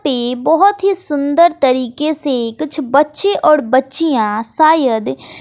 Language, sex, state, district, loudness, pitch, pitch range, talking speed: Hindi, female, Bihar, West Champaran, -14 LUFS, 290 Hz, 260-315 Hz, 120 wpm